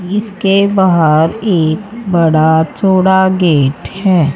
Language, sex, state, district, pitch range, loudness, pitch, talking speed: Hindi, female, Haryana, Charkhi Dadri, 160-195 Hz, -11 LUFS, 185 Hz, 95 wpm